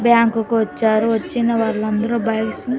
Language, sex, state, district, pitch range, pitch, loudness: Telugu, female, Andhra Pradesh, Sri Satya Sai, 220-235 Hz, 225 Hz, -18 LUFS